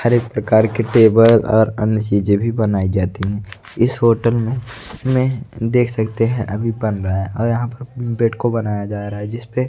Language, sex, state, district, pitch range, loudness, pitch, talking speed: Hindi, male, Odisha, Nuapada, 105-120 Hz, -17 LUFS, 115 Hz, 205 wpm